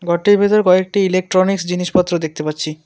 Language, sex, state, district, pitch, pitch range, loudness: Bengali, male, West Bengal, Alipurduar, 180 Hz, 170-195 Hz, -15 LUFS